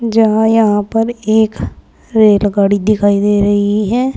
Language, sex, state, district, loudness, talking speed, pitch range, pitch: Hindi, female, Uttar Pradesh, Saharanpur, -12 LUFS, 145 wpm, 205-225 Hz, 215 Hz